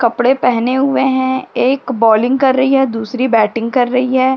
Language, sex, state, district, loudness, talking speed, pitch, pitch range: Hindi, female, Uttar Pradesh, Jyotiba Phule Nagar, -14 LUFS, 190 wpm, 255 Hz, 235-265 Hz